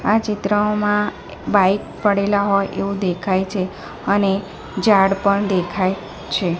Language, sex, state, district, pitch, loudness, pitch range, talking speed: Gujarati, female, Gujarat, Gandhinagar, 200 Hz, -19 LUFS, 190-205 Hz, 120 wpm